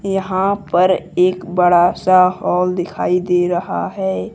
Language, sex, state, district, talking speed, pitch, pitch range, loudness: Hindi, male, Jharkhand, Deoghar, 140 wpm, 180 Hz, 175-185 Hz, -16 LUFS